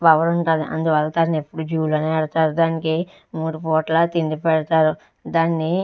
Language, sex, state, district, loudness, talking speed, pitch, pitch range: Telugu, female, Andhra Pradesh, Chittoor, -20 LUFS, 155 wpm, 160 Hz, 155-165 Hz